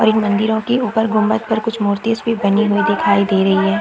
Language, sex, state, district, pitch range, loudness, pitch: Hindi, female, Chhattisgarh, Raigarh, 200-220 Hz, -16 LUFS, 215 Hz